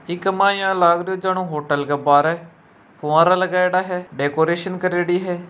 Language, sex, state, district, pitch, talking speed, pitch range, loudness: Hindi, female, Rajasthan, Nagaur, 175 Hz, 155 wpm, 160-185 Hz, -18 LUFS